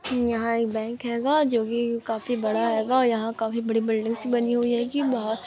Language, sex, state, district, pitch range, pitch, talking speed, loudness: Hindi, female, Bihar, Araria, 225-245 Hz, 230 Hz, 220 wpm, -25 LUFS